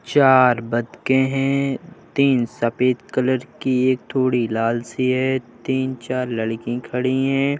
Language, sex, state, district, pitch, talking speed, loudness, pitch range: Hindi, male, Uttar Pradesh, Jalaun, 130 Hz, 140 wpm, -20 LUFS, 120-130 Hz